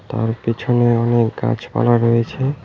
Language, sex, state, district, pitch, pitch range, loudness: Bengali, male, West Bengal, Cooch Behar, 120 Hz, 115-125 Hz, -17 LUFS